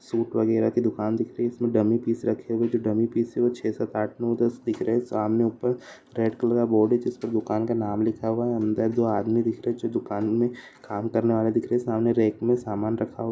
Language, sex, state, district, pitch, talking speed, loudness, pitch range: Hindi, male, Uttar Pradesh, Deoria, 115 Hz, 280 wpm, -25 LUFS, 110-120 Hz